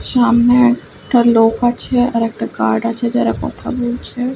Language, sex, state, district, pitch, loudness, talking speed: Bengali, female, West Bengal, Kolkata, 240 Hz, -15 LUFS, 150 wpm